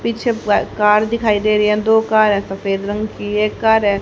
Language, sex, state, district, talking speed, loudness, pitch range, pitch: Hindi, male, Haryana, Rohtak, 255 wpm, -16 LUFS, 205-220 Hz, 210 Hz